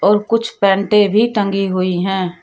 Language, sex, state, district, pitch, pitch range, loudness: Hindi, female, Uttar Pradesh, Shamli, 200 Hz, 190-210 Hz, -15 LUFS